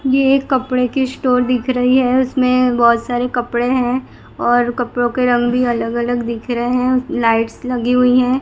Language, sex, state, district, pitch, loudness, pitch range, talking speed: Hindi, female, Gujarat, Gandhinagar, 250 Hz, -16 LUFS, 240-255 Hz, 185 wpm